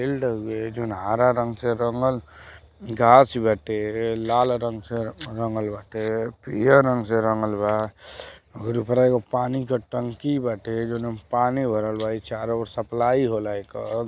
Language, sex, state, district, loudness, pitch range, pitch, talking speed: Bhojpuri, male, Uttar Pradesh, Deoria, -23 LUFS, 110-125 Hz, 115 Hz, 160 wpm